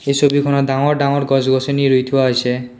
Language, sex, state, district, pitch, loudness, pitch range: Assamese, male, Assam, Kamrup Metropolitan, 135 Hz, -15 LUFS, 130-140 Hz